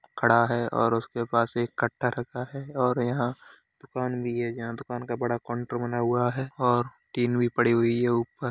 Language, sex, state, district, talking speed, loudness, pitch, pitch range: Hindi, male, Uttar Pradesh, Hamirpur, 205 wpm, -27 LUFS, 120 Hz, 120-125 Hz